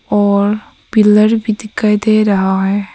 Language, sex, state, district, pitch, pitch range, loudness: Hindi, female, Arunachal Pradesh, Papum Pare, 210 Hz, 200-215 Hz, -13 LUFS